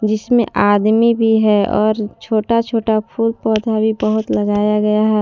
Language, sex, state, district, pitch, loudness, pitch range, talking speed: Hindi, female, Jharkhand, Palamu, 220 Hz, -15 LUFS, 210-225 Hz, 160 wpm